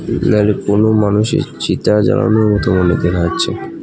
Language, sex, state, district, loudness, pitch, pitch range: Bengali, male, West Bengal, Alipurduar, -14 LUFS, 105 Hz, 90-110 Hz